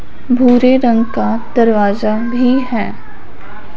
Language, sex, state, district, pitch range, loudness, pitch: Hindi, female, Punjab, Fazilka, 225-250 Hz, -13 LUFS, 235 Hz